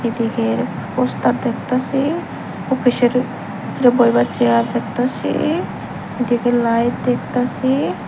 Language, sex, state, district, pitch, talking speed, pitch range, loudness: Bengali, female, Tripura, Unakoti, 245 Hz, 80 wpm, 230-250 Hz, -18 LUFS